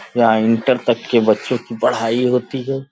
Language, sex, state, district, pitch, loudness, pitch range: Hindi, male, Uttar Pradesh, Gorakhpur, 120 Hz, -17 LUFS, 115-125 Hz